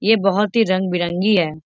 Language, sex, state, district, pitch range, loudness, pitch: Hindi, female, Bihar, Bhagalpur, 175-210 Hz, -18 LUFS, 195 Hz